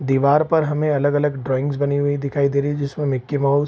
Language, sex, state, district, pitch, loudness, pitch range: Hindi, male, Bihar, Supaul, 145 Hz, -20 LUFS, 140-145 Hz